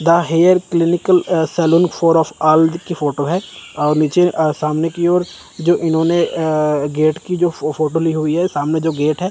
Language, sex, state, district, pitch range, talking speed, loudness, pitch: Hindi, male, Chandigarh, Chandigarh, 155-175 Hz, 210 wpm, -16 LUFS, 165 Hz